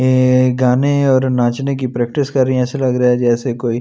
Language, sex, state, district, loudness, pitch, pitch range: Hindi, male, Delhi, New Delhi, -15 LUFS, 130 Hz, 125-130 Hz